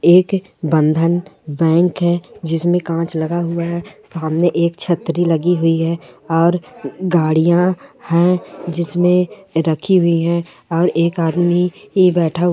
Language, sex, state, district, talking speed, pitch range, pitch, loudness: Hindi, female, Bihar, Sitamarhi, 130 wpm, 165-175 Hz, 170 Hz, -16 LUFS